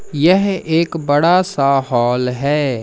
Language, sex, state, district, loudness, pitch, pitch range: Hindi, male, Madhya Pradesh, Umaria, -15 LUFS, 145 Hz, 135-170 Hz